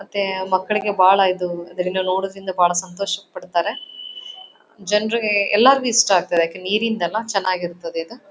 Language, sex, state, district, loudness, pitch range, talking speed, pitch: Kannada, female, Karnataka, Dharwad, -19 LUFS, 180-210 Hz, 135 wpm, 195 Hz